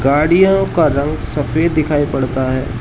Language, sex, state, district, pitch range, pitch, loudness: Hindi, male, Uttar Pradesh, Shamli, 135-155 Hz, 145 Hz, -15 LUFS